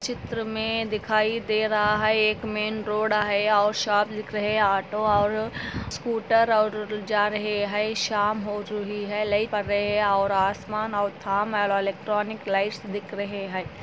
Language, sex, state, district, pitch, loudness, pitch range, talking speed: Hindi, female, Andhra Pradesh, Anantapur, 210 Hz, -25 LUFS, 205-215 Hz, 160 wpm